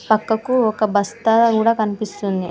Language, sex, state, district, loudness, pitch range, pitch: Telugu, female, Telangana, Mahabubabad, -18 LUFS, 205-225 Hz, 220 Hz